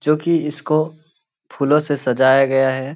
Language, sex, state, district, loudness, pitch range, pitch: Hindi, male, Bihar, Lakhisarai, -17 LUFS, 135-155 Hz, 150 Hz